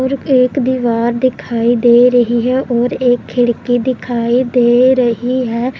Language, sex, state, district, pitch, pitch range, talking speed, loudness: Hindi, female, Punjab, Pathankot, 245 Hz, 240-255 Hz, 145 wpm, -13 LUFS